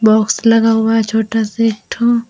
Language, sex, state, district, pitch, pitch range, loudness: Hindi, female, Jharkhand, Deoghar, 225 Hz, 220-230 Hz, -14 LUFS